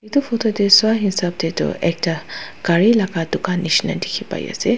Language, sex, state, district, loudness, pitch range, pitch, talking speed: Nagamese, female, Nagaland, Dimapur, -18 LUFS, 170-220 Hz, 190 Hz, 150 wpm